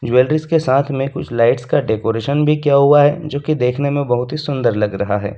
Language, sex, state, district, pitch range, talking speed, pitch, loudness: Hindi, male, Delhi, New Delhi, 120-145 Hz, 245 wpm, 135 Hz, -16 LUFS